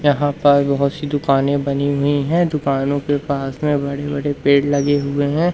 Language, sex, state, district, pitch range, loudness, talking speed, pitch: Hindi, male, Madhya Pradesh, Umaria, 140-145 Hz, -18 LUFS, 195 wpm, 140 Hz